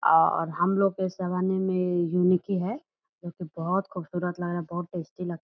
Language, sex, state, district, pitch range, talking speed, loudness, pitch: Hindi, female, Bihar, Purnia, 175-190 Hz, 230 wpm, -27 LUFS, 180 Hz